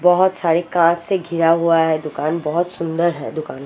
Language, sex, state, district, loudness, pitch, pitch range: Hindi, female, Odisha, Sambalpur, -18 LUFS, 165 Hz, 160-175 Hz